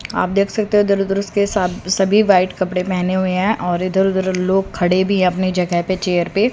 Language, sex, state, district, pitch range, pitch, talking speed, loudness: Hindi, female, Haryana, Rohtak, 185-200 Hz, 185 Hz, 240 wpm, -17 LUFS